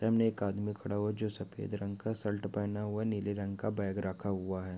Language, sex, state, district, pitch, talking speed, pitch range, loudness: Hindi, male, Uttarakhand, Tehri Garhwal, 105 Hz, 265 wpm, 100-105 Hz, -36 LUFS